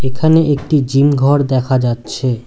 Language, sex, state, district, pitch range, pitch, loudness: Bengali, male, West Bengal, Cooch Behar, 130-145 Hz, 135 Hz, -14 LUFS